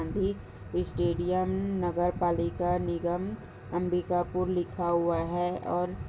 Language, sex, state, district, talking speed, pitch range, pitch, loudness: Hindi, female, Chhattisgarh, Balrampur, 90 wpm, 170-180 Hz, 175 Hz, -30 LUFS